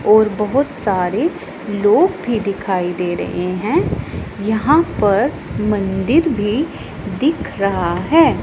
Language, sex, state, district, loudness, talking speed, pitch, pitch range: Hindi, female, Punjab, Pathankot, -17 LUFS, 115 wpm, 215 Hz, 195-290 Hz